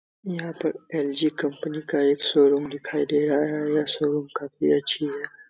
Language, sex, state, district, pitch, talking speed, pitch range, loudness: Hindi, male, Bihar, Supaul, 150 Hz, 175 wpm, 145-155 Hz, -24 LUFS